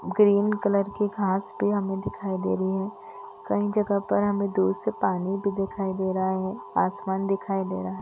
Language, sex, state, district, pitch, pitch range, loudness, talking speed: Hindi, female, Bihar, Gopalganj, 195 Hz, 185-200 Hz, -26 LUFS, 200 wpm